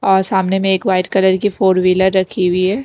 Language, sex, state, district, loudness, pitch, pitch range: Hindi, female, Himachal Pradesh, Shimla, -14 LUFS, 190 Hz, 185-195 Hz